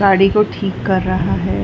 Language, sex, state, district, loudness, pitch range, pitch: Hindi, female, Bihar, Darbhanga, -16 LUFS, 175-195 Hz, 190 Hz